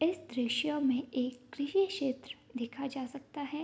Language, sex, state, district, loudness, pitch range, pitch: Hindi, female, Bihar, Madhepura, -35 LUFS, 255-300 Hz, 275 Hz